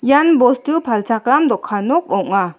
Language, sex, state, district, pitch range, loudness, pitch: Garo, female, Meghalaya, South Garo Hills, 205-300 Hz, -15 LUFS, 250 Hz